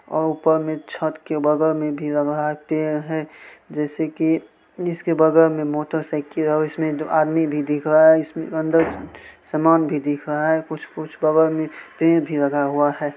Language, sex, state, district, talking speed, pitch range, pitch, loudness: Maithili, male, Bihar, Supaul, 185 wpm, 150-160 Hz, 155 Hz, -20 LUFS